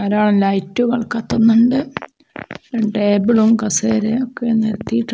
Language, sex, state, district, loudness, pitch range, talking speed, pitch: Malayalam, female, Kerala, Kozhikode, -16 LUFS, 210-235 Hz, 80 wpm, 225 Hz